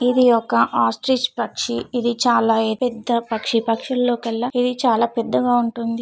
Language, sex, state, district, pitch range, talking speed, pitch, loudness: Telugu, female, Telangana, Nalgonda, 225-245 Hz, 110 wpm, 235 Hz, -19 LUFS